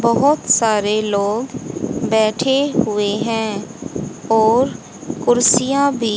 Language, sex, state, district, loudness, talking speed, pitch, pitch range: Hindi, female, Haryana, Charkhi Dadri, -17 LUFS, 90 wpm, 230 Hz, 215-260 Hz